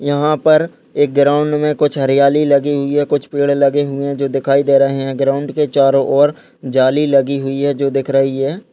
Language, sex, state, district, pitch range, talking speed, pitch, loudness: Hindi, male, Chhattisgarh, Kabirdham, 135-145 Hz, 220 wpm, 140 Hz, -14 LUFS